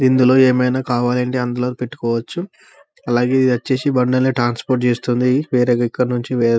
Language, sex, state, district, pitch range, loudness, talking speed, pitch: Telugu, male, Telangana, Karimnagar, 120-130 Hz, -17 LUFS, 125 wpm, 125 Hz